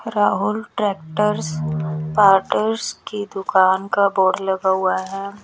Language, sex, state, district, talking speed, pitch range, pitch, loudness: Hindi, female, Bihar, West Champaran, 110 wpm, 185-210 Hz, 195 Hz, -19 LUFS